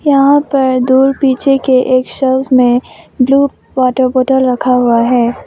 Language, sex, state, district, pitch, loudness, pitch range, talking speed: Hindi, female, Arunachal Pradesh, Longding, 260 Hz, -11 LUFS, 255-270 Hz, 145 wpm